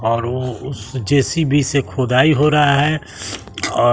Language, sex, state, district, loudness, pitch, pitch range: Hindi, male, Bihar, West Champaran, -17 LUFS, 130 Hz, 115-145 Hz